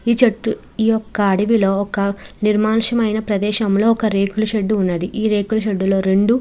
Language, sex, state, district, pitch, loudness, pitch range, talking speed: Telugu, female, Andhra Pradesh, Chittoor, 215 Hz, -17 LUFS, 200-220 Hz, 110 wpm